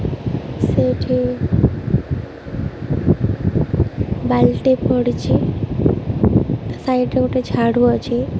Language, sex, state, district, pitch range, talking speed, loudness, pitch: Odia, female, Odisha, Malkangiri, 120-125 Hz, 55 wpm, -18 LUFS, 125 Hz